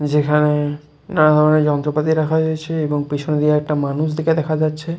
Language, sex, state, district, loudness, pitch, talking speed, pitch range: Bengali, male, West Bengal, Jalpaiguri, -17 LUFS, 150 Hz, 180 wpm, 150-155 Hz